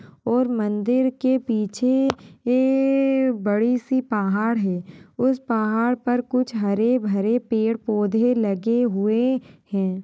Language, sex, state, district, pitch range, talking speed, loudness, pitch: Kumaoni, female, Uttarakhand, Tehri Garhwal, 210-255 Hz, 120 wpm, -22 LUFS, 235 Hz